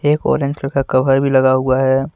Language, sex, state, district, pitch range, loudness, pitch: Hindi, male, Jharkhand, Ranchi, 130-140 Hz, -15 LUFS, 135 Hz